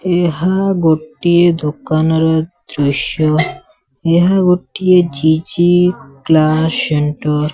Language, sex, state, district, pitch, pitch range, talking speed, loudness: Odia, male, Odisha, Sambalpur, 160 Hz, 150-175 Hz, 80 wpm, -14 LUFS